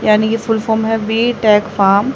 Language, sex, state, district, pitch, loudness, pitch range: Hindi, female, Haryana, Rohtak, 220 Hz, -14 LUFS, 210-225 Hz